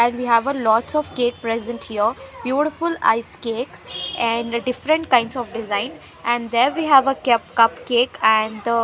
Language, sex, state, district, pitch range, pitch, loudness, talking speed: English, female, Haryana, Rohtak, 230-265 Hz, 240 Hz, -20 LUFS, 185 wpm